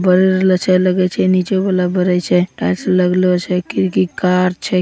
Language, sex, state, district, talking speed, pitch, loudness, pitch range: Hindi, female, Bihar, Begusarai, 200 wpm, 180 Hz, -15 LUFS, 180-185 Hz